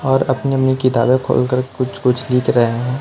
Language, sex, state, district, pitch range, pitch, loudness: Hindi, male, Chhattisgarh, Raipur, 125-130 Hz, 130 Hz, -16 LUFS